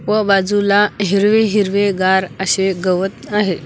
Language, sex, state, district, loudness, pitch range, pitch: Marathi, female, Maharashtra, Washim, -15 LUFS, 190-205 Hz, 200 Hz